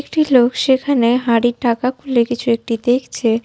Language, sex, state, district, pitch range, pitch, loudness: Bengali, female, West Bengal, Jhargram, 235-260 Hz, 245 Hz, -16 LUFS